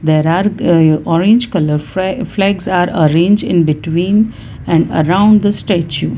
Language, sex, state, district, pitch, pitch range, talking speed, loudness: English, female, Gujarat, Valsad, 175 Hz, 160-200 Hz, 145 wpm, -13 LUFS